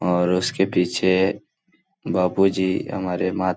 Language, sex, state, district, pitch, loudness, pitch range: Hindi, male, Bihar, Jahanabad, 95 Hz, -21 LUFS, 90-100 Hz